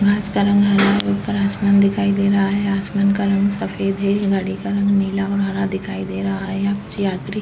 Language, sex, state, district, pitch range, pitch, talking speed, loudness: Hindi, female, Uttar Pradesh, Etah, 195-200 Hz, 200 Hz, 245 wpm, -19 LUFS